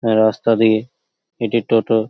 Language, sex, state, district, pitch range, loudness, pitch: Bengali, male, West Bengal, Paschim Medinipur, 110-115 Hz, -17 LUFS, 115 Hz